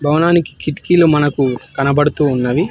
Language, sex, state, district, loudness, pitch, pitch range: Telugu, male, Telangana, Hyderabad, -15 LUFS, 150 Hz, 140-165 Hz